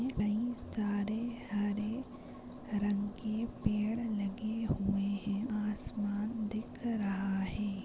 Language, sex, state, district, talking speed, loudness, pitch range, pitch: Hindi, female, Chhattisgarh, Bastar, 100 wpm, -36 LUFS, 205-225 Hz, 210 Hz